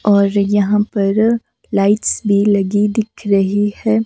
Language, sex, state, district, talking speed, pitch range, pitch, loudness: Hindi, female, Himachal Pradesh, Shimla, 135 wpm, 200-210 Hz, 205 Hz, -15 LUFS